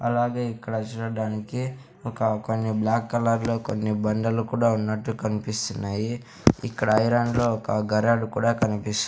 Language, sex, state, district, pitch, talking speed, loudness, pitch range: Telugu, male, Andhra Pradesh, Sri Satya Sai, 115 Hz, 120 wpm, -25 LUFS, 110-115 Hz